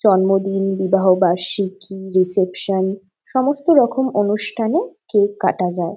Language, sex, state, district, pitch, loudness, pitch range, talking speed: Bengali, female, West Bengal, Jhargram, 195 Hz, -18 LUFS, 190-225 Hz, 100 wpm